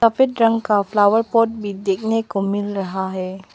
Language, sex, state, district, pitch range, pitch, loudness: Hindi, female, Arunachal Pradesh, Papum Pare, 195-225 Hz, 205 Hz, -19 LUFS